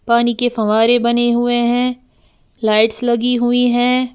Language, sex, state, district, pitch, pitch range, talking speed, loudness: Hindi, female, Uttar Pradesh, Lalitpur, 240 Hz, 235-245 Hz, 145 wpm, -15 LUFS